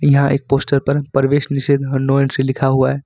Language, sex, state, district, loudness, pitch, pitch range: Hindi, male, Jharkhand, Ranchi, -16 LUFS, 140 Hz, 135-140 Hz